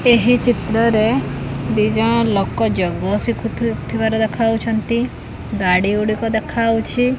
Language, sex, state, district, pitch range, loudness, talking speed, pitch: Odia, female, Odisha, Khordha, 210-230 Hz, -18 LUFS, 135 wpm, 225 Hz